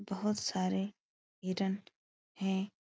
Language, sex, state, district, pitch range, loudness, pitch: Hindi, female, Uttar Pradesh, Etah, 190-200 Hz, -36 LUFS, 195 Hz